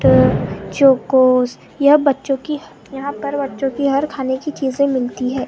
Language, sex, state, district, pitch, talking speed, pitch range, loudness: Hindi, female, Maharashtra, Gondia, 270 Hz, 165 wpm, 260-285 Hz, -17 LUFS